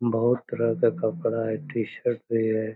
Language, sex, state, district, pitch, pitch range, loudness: Magahi, male, Bihar, Lakhisarai, 115 Hz, 110-115 Hz, -26 LUFS